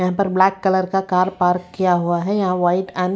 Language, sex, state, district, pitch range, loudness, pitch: Hindi, female, Haryana, Rohtak, 180-190 Hz, -18 LUFS, 185 Hz